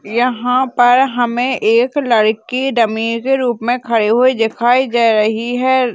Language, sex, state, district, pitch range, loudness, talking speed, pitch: Hindi, female, Uttar Pradesh, Jalaun, 230-255 Hz, -14 LUFS, 150 wpm, 245 Hz